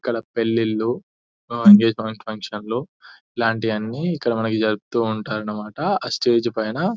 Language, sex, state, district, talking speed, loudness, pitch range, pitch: Telugu, male, Telangana, Nalgonda, 120 wpm, -21 LUFS, 110-120 Hz, 110 Hz